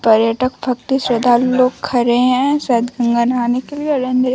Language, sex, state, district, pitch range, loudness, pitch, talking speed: Hindi, female, Bihar, Vaishali, 240-255 Hz, -16 LUFS, 250 Hz, 150 wpm